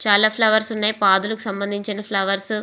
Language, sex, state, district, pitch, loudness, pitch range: Telugu, female, Andhra Pradesh, Visakhapatnam, 210 Hz, -18 LUFS, 200-215 Hz